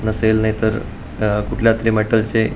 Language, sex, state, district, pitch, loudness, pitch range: Marathi, male, Goa, North and South Goa, 110 Hz, -18 LUFS, 110-115 Hz